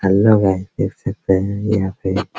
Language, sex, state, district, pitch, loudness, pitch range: Hindi, male, Bihar, Araria, 95 Hz, -18 LUFS, 95-105 Hz